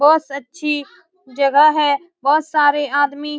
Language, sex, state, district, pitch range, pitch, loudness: Hindi, female, Bihar, Saran, 285-305 Hz, 295 Hz, -16 LUFS